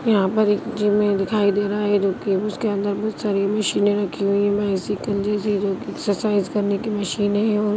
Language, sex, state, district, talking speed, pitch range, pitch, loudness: Hindi, female, Chhattisgarh, Rajnandgaon, 215 wpm, 200-210 Hz, 205 Hz, -21 LUFS